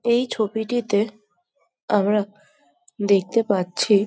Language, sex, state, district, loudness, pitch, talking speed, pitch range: Bengali, female, West Bengal, Jhargram, -22 LUFS, 210 Hz, 90 wpm, 200-230 Hz